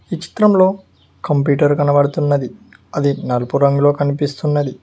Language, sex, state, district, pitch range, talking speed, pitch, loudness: Telugu, male, Telangana, Mahabubabad, 140-150 Hz, 100 wpm, 145 Hz, -16 LUFS